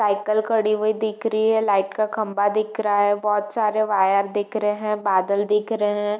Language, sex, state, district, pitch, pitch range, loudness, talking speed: Hindi, female, Bihar, Darbhanga, 210 Hz, 205-215 Hz, -21 LUFS, 215 wpm